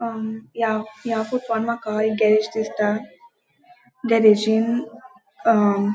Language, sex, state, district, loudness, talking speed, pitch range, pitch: Konkani, female, Goa, North and South Goa, -21 LUFS, 110 wpm, 215-235 Hz, 220 Hz